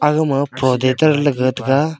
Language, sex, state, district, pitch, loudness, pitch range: Wancho, male, Arunachal Pradesh, Longding, 140 Hz, -16 LUFS, 130-150 Hz